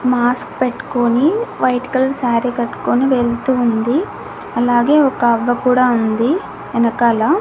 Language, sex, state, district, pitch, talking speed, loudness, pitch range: Telugu, female, Andhra Pradesh, Annamaya, 245 Hz, 115 wpm, -16 LUFS, 235-260 Hz